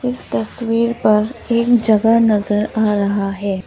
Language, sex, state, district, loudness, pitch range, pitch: Hindi, female, Arunachal Pradesh, Papum Pare, -16 LUFS, 205-235 Hz, 215 Hz